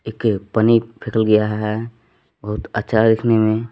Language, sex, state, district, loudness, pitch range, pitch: Hindi, male, Jharkhand, Palamu, -18 LUFS, 105-115 Hz, 110 Hz